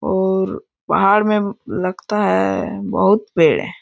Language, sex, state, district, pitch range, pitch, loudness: Hindi, male, Jharkhand, Jamtara, 185-210 Hz, 200 Hz, -17 LUFS